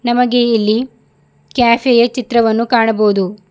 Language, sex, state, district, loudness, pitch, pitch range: Kannada, female, Karnataka, Bidar, -13 LUFS, 235 Hz, 225-245 Hz